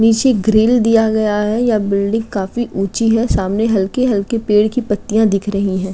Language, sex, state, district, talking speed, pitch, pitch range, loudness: Hindi, female, Uttar Pradesh, Gorakhpur, 190 wpm, 220 Hz, 200-225 Hz, -15 LUFS